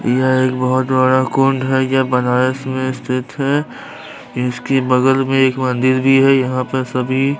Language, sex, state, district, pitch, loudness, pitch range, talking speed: Hindi, male, Chhattisgarh, Kabirdham, 130 Hz, -15 LUFS, 130-135 Hz, 180 wpm